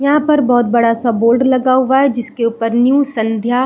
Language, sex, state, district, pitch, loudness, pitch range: Hindi, female, Uttarakhand, Uttarkashi, 245 Hz, -13 LUFS, 230-265 Hz